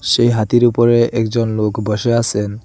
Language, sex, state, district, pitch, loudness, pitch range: Bengali, male, Assam, Hailakandi, 115 Hz, -15 LUFS, 105-120 Hz